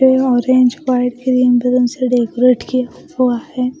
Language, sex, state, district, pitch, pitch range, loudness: Hindi, female, Bihar, West Champaran, 250 Hz, 245-255 Hz, -15 LUFS